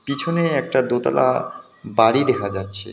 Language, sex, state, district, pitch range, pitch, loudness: Bengali, male, West Bengal, Alipurduar, 100-140 Hz, 120 Hz, -19 LUFS